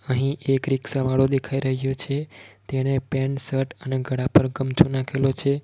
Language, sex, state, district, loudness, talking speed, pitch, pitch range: Gujarati, male, Gujarat, Valsad, -23 LUFS, 170 wpm, 135 Hz, 130-135 Hz